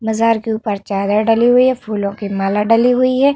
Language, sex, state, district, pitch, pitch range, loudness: Hindi, female, Uttar Pradesh, Varanasi, 220 Hz, 205-240 Hz, -15 LUFS